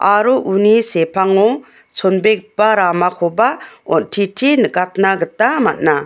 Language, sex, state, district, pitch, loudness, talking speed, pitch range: Garo, female, Meghalaya, West Garo Hills, 200 Hz, -14 LUFS, 90 wpm, 180-215 Hz